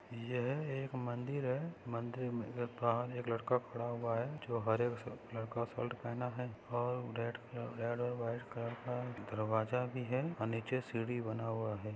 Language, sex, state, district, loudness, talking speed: Hindi, female, Maharashtra, Sindhudurg, -39 LUFS, 170 wpm